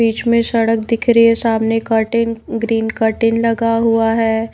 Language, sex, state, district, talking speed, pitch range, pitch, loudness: Hindi, female, Haryana, Rohtak, 170 wpm, 225-230 Hz, 230 Hz, -15 LUFS